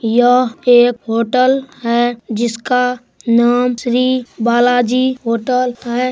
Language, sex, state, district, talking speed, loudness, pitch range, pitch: Hindi, female, Bihar, Supaul, 100 wpm, -14 LUFS, 235-250 Hz, 245 Hz